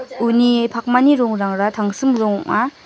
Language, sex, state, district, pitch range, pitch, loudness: Garo, female, Meghalaya, West Garo Hills, 210-255 Hz, 235 Hz, -17 LUFS